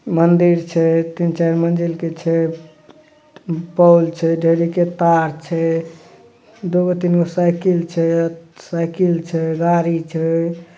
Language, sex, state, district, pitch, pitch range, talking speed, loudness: Maithili, male, Bihar, Madhepura, 170 Hz, 165-175 Hz, 105 wpm, -17 LUFS